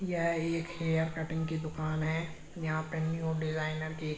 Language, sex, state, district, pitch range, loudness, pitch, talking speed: Hindi, male, Uttar Pradesh, Jyotiba Phule Nagar, 155-165 Hz, -34 LUFS, 160 Hz, 185 wpm